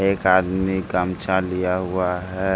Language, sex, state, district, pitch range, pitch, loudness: Hindi, male, Bihar, Jamui, 90-95 Hz, 95 Hz, -21 LUFS